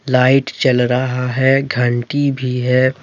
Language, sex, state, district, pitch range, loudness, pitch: Hindi, male, Jharkhand, Deoghar, 125-135 Hz, -16 LUFS, 130 Hz